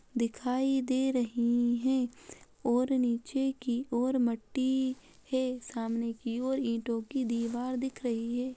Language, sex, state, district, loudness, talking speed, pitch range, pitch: Hindi, female, Bihar, Muzaffarpur, -31 LUFS, 135 wpm, 235-260 Hz, 250 Hz